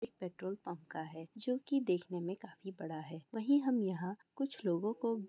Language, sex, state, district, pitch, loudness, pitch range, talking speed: Hindi, female, West Bengal, Jalpaiguri, 195 Hz, -39 LUFS, 175-230 Hz, 195 wpm